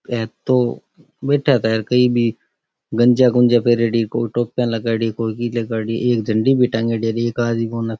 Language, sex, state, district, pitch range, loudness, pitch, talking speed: Rajasthani, male, Rajasthan, Nagaur, 115-120 Hz, -18 LUFS, 115 Hz, 135 wpm